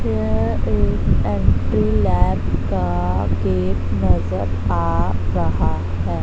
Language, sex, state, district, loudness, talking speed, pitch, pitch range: Hindi, female, Punjab, Fazilka, -20 LUFS, 75 wpm, 90 Hz, 85-95 Hz